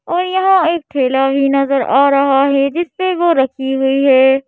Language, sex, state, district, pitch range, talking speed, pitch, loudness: Hindi, female, Madhya Pradesh, Bhopal, 270-340 Hz, 200 wpm, 275 Hz, -13 LUFS